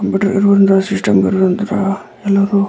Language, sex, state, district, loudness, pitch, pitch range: Kannada, male, Karnataka, Dharwad, -14 LUFS, 195 Hz, 190-200 Hz